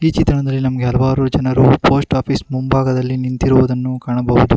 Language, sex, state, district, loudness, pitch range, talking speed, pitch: Kannada, male, Karnataka, Bangalore, -15 LUFS, 125-135 Hz, 130 wpm, 130 Hz